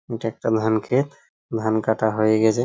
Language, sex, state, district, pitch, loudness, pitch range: Bengali, male, West Bengal, Purulia, 110 Hz, -22 LUFS, 110-115 Hz